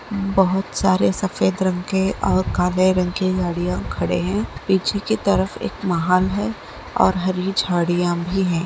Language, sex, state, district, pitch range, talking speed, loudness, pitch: Bhojpuri, male, Uttar Pradesh, Gorakhpur, 175-195 Hz, 160 wpm, -20 LUFS, 185 Hz